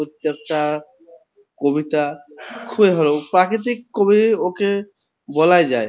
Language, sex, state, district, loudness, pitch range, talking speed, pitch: Bengali, male, West Bengal, Purulia, -18 LUFS, 150-210 Hz, 100 wpm, 170 Hz